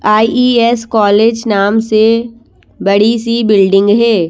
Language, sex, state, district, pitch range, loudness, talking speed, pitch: Hindi, female, Madhya Pradesh, Bhopal, 205-230 Hz, -10 LUFS, 110 wpm, 220 Hz